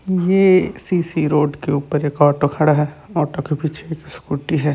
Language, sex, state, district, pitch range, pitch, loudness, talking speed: Chhattisgarhi, male, Chhattisgarh, Sarguja, 145-165 Hz, 150 Hz, -18 LUFS, 190 wpm